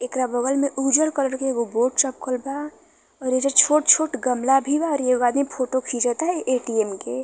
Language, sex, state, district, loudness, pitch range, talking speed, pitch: Bhojpuri, female, Uttar Pradesh, Varanasi, -21 LUFS, 250-280 Hz, 190 wpm, 260 Hz